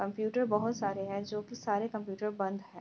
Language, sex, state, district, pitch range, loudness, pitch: Hindi, female, Bihar, Kishanganj, 195-215 Hz, -34 LUFS, 210 Hz